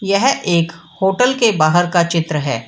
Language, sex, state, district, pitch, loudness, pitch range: Hindi, female, Bihar, Samastipur, 175 Hz, -15 LUFS, 165-200 Hz